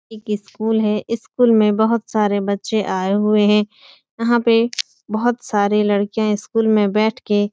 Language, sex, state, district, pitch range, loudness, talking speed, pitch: Hindi, female, Uttar Pradesh, Etah, 205-225 Hz, -18 LUFS, 160 wpm, 215 Hz